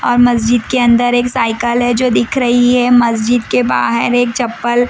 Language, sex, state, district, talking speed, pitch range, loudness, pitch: Hindi, female, Bihar, Patna, 195 wpm, 235-245 Hz, -12 LUFS, 240 Hz